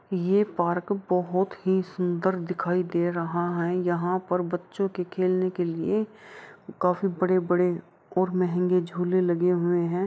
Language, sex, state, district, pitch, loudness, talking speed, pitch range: Hindi, female, Bihar, Saharsa, 180 Hz, -26 LUFS, 145 wpm, 175-185 Hz